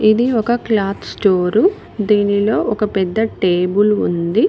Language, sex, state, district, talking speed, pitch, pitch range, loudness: Telugu, female, Telangana, Mahabubabad, 120 wpm, 210 Hz, 190-220 Hz, -16 LUFS